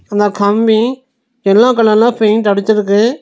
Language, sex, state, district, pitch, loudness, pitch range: Tamil, male, Tamil Nadu, Nilgiris, 220 Hz, -11 LUFS, 205-240 Hz